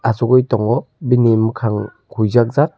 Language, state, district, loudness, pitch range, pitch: Kokborok, Tripura, Dhalai, -16 LUFS, 110-125 Hz, 115 Hz